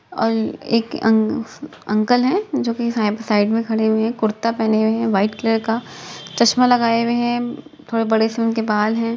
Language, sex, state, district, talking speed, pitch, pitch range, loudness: Hindi, female, Uttar Pradesh, Etah, 195 wpm, 225 Hz, 220-235 Hz, -19 LUFS